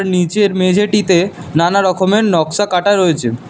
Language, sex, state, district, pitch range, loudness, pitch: Bengali, male, Karnataka, Bangalore, 175-200 Hz, -13 LUFS, 185 Hz